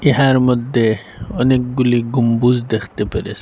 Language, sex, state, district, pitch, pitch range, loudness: Bengali, female, Assam, Hailakandi, 120 Hz, 110-125 Hz, -16 LUFS